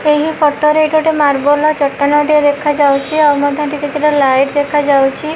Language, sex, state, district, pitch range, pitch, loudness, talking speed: Odia, female, Odisha, Malkangiri, 285-300 Hz, 295 Hz, -12 LUFS, 170 wpm